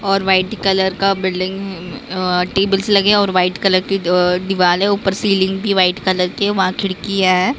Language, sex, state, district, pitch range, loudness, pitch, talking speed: Hindi, female, Maharashtra, Mumbai Suburban, 185-195 Hz, -16 LUFS, 190 Hz, 215 wpm